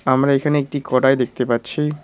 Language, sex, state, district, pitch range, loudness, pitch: Bengali, male, West Bengal, Cooch Behar, 130-145 Hz, -18 LUFS, 135 Hz